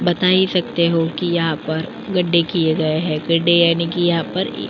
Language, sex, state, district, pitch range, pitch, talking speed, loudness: Hindi, female, Uttar Pradesh, Jyotiba Phule Nagar, 165-175 Hz, 170 Hz, 215 wpm, -18 LUFS